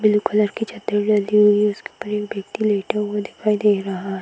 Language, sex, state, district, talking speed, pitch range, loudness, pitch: Hindi, female, Bihar, Saran, 240 wpm, 205-210 Hz, -20 LUFS, 210 Hz